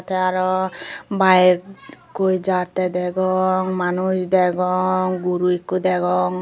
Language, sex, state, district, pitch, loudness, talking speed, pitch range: Chakma, female, Tripura, Dhalai, 185 Hz, -19 LUFS, 95 wpm, 180-185 Hz